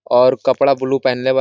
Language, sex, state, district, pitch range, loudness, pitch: Hindi, male, Jharkhand, Sahebganj, 130-135 Hz, -15 LUFS, 130 Hz